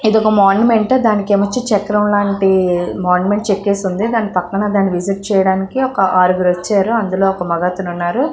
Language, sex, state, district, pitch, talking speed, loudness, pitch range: Telugu, female, Andhra Pradesh, Guntur, 200 Hz, 150 wpm, -15 LUFS, 185-215 Hz